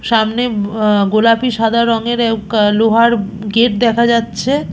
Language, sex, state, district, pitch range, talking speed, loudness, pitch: Bengali, female, West Bengal, Purulia, 215-235 Hz, 140 wpm, -13 LUFS, 225 Hz